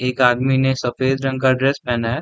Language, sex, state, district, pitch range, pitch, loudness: Hindi, male, Bihar, Darbhanga, 125-135 Hz, 130 Hz, -18 LUFS